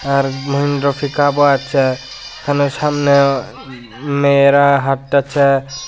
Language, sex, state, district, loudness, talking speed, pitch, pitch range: Bengali, male, Tripura, West Tripura, -14 LUFS, 80 wpm, 140 Hz, 135-140 Hz